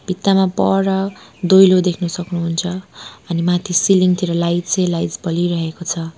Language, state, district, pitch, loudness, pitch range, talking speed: Nepali, West Bengal, Darjeeling, 180 Hz, -17 LUFS, 170-185 Hz, 135 wpm